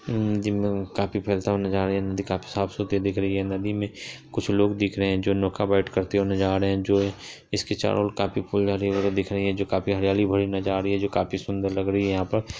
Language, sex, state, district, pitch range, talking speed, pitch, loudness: Hindi, female, Bihar, Purnia, 95-100 Hz, 270 wpm, 100 Hz, -25 LUFS